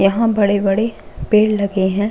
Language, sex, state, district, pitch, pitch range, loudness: Hindi, female, Chhattisgarh, Bastar, 205 Hz, 200-215 Hz, -16 LUFS